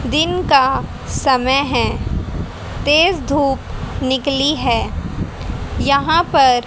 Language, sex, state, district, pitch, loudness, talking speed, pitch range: Hindi, female, Haryana, Rohtak, 280 Hz, -17 LUFS, 100 wpm, 265-295 Hz